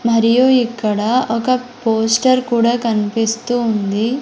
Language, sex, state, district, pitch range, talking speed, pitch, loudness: Telugu, female, Andhra Pradesh, Sri Satya Sai, 225-250 Hz, 100 wpm, 235 Hz, -16 LUFS